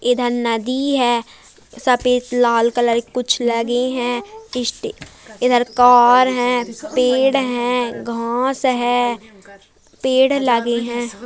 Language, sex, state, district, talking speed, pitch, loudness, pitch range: Hindi, male, Uttarakhand, Tehri Garhwal, 100 wpm, 245 Hz, -17 LUFS, 235-250 Hz